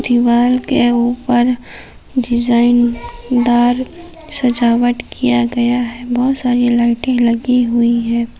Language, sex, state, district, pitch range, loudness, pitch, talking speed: Hindi, female, Jharkhand, Palamu, 240-250 Hz, -14 LUFS, 240 Hz, 105 wpm